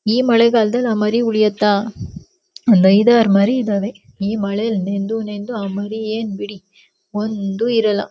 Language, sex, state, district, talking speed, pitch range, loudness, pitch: Kannada, female, Karnataka, Shimoga, 140 wpm, 205-230 Hz, -17 LUFS, 215 Hz